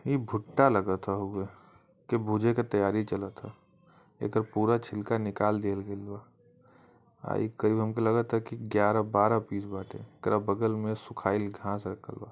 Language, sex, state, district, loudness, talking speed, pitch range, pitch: Bhojpuri, male, Uttar Pradesh, Varanasi, -30 LUFS, 160 wpm, 100-115 Hz, 105 Hz